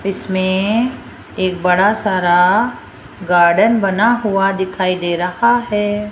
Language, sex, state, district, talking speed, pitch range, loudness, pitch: Hindi, female, Rajasthan, Jaipur, 110 wpm, 180-210 Hz, -15 LUFS, 195 Hz